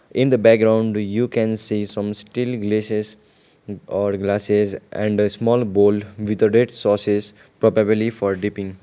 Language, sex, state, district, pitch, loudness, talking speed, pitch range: English, male, Sikkim, Gangtok, 105 Hz, -19 LUFS, 150 wpm, 105-110 Hz